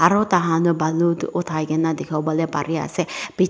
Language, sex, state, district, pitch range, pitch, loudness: Nagamese, female, Nagaland, Dimapur, 155-170 Hz, 165 Hz, -21 LUFS